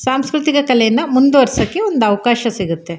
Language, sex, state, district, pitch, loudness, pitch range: Kannada, female, Karnataka, Shimoga, 250 Hz, -14 LUFS, 225-280 Hz